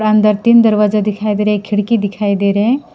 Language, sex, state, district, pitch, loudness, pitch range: Hindi, female, Assam, Sonitpur, 210 Hz, -13 LUFS, 205-215 Hz